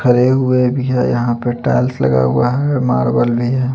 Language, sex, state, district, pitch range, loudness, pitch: Hindi, male, Chandigarh, Chandigarh, 120-130 Hz, -15 LUFS, 125 Hz